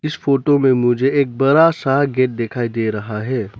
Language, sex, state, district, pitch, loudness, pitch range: Hindi, male, Arunachal Pradesh, Lower Dibang Valley, 130 Hz, -17 LUFS, 115-140 Hz